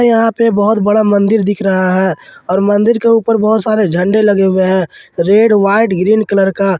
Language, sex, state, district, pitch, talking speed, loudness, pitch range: Hindi, male, Jharkhand, Ranchi, 205 Hz, 205 wpm, -12 LUFS, 190-220 Hz